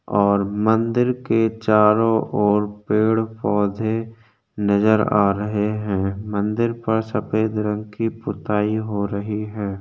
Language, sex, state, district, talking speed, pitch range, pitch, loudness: Hindi, male, Chhattisgarh, Korba, 115 wpm, 105-110 Hz, 105 Hz, -20 LUFS